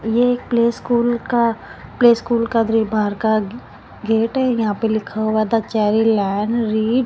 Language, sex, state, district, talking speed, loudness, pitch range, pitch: Hindi, female, Punjab, Pathankot, 205 wpm, -18 LUFS, 215-235 Hz, 225 Hz